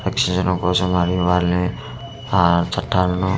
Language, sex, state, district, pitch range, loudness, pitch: Telugu, male, Andhra Pradesh, Manyam, 90-95 Hz, -19 LUFS, 90 Hz